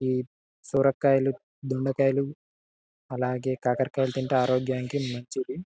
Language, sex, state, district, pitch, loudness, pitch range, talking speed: Telugu, male, Telangana, Karimnagar, 130 Hz, -27 LUFS, 125-135 Hz, 95 wpm